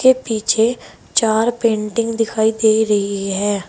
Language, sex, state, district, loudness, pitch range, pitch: Hindi, female, Uttar Pradesh, Saharanpur, -17 LUFS, 210-230 Hz, 220 Hz